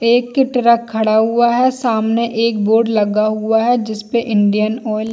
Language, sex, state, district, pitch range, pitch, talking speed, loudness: Hindi, female, Jharkhand, Jamtara, 215-235 Hz, 225 Hz, 200 wpm, -15 LUFS